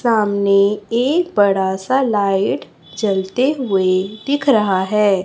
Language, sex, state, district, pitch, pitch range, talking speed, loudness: Hindi, female, Chhattisgarh, Raipur, 205 Hz, 190-240 Hz, 105 wpm, -17 LUFS